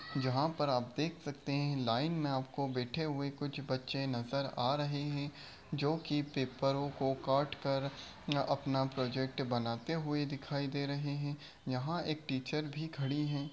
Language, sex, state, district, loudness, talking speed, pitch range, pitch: Hindi, male, Bihar, Begusarai, -37 LUFS, 150 wpm, 135-145 Hz, 140 Hz